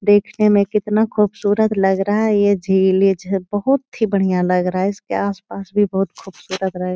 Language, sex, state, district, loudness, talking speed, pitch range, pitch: Hindi, female, Bihar, Jahanabad, -18 LUFS, 190 wpm, 190-210 Hz, 200 Hz